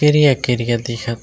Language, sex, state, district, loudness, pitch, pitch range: Chhattisgarhi, male, Chhattisgarh, Raigarh, -17 LUFS, 120 Hz, 115-140 Hz